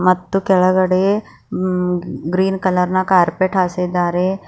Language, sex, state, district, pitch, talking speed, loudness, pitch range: Kannada, female, Karnataka, Bidar, 185 Hz, 120 wpm, -17 LUFS, 180-190 Hz